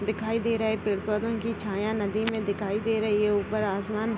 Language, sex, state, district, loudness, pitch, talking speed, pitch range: Hindi, female, Bihar, Gopalganj, -28 LUFS, 215 Hz, 260 wpm, 205-220 Hz